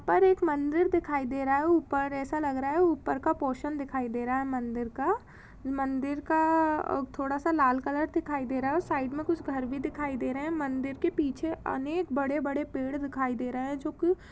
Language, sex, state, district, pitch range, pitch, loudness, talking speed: Hindi, female, Chhattisgarh, Rajnandgaon, 270-320 Hz, 285 Hz, -29 LUFS, 215 wpm